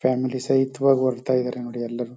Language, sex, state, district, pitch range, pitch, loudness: Kannada, male, Karnataka, Chamarajanagar, 125-130 Hz, 130 Hz, -23 LUFS